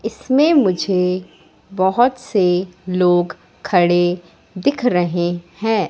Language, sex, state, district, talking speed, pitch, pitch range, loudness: Hindi, female, Madhya Pradesh, Katni, 90 wpm, 185 Hz, 175-220 Hz, -17 LUFS